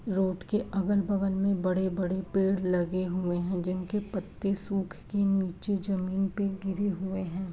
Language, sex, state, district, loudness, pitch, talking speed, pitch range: Hindi, female, Uttar Pradesh, Varanasi, -30 LUFS, 190 Hz, 150 wpm, 185-195 Hz